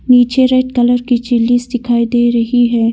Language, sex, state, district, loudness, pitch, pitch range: Hindi, female, Arunachal Pradesh, Longding, -12 LUFS, 245 Hz, 235-245 Hz